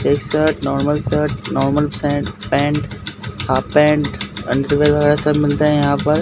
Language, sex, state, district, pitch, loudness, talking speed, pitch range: Hindi, male, Bihar, Katihar, 145 Hz, -17 LUFS, 155 wpm, 140-150 Hz